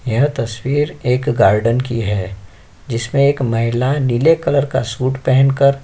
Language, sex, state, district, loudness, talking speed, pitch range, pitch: Hindi, male, Uttar Pradesh, Jyotiba Phule Nagar, -16 LUFS, 165 wpm, 115-140 Hz, 125 Hz